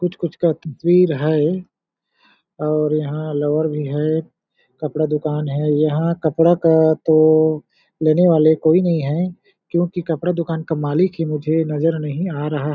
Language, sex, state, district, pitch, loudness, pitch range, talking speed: Hindi, male, Chhattisgarh, Balrampur, 155 Hz, -18 LUFS, 150-170 Hz, 150 wpm